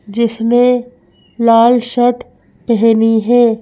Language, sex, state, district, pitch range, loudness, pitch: Hindi, female, Madhya Pradesh, Bhopal, 225-245 Hz, -12 LUFS, 235 Hz